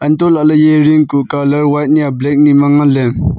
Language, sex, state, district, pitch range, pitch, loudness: Wancho, male, Arunachal Pradesh, Longding, 140-150 Hz, 145 Hz, -10 LUFS